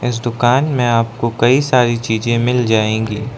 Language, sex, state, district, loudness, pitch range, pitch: Hindi, male, Arunachal Pradesh, Lower Dibang Valley, -15 LUFS, 115-125 Hz, 120 Hz